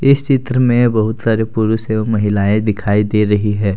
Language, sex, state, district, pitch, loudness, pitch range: Hindi, male, Jharkhand, Deoghar, 110 Hz, -15 LUFS, 105-120 Hz